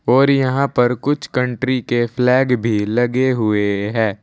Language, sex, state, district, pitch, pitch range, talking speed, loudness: Hindi, male, Uttar Pradesh, Saharanpur, 125 Hz, 115-130 Hz, 155 wpm, -17 LUFS